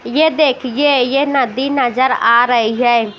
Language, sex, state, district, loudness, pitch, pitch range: Hindi, female, Maharashtra, Washim, -14 LUFS, 255 Hz, 240-280 Hz